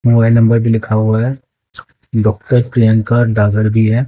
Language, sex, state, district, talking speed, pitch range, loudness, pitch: Hindi, male, Haryana, Jhajjar, 160 wpm, 110-120 Hz, -13 LUFS, 115 Hz